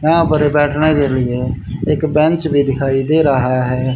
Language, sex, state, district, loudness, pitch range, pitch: Hindi, male, Haryana, Jhajjar, -15 LUFS, 130-155 Hz, 145 Hz